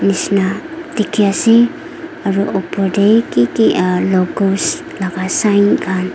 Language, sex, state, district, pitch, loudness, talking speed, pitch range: Nagamese, female, Nagaland, Dimapur, 195 Hz, -14 LUFS, 105 wpm, 185-220 Hz